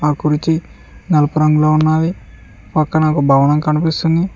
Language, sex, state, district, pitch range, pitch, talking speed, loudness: Telugu, male, Telangana, Mahabubabad, 150-160 Hz, 155 Hz, 125 wpm, -15 LUFS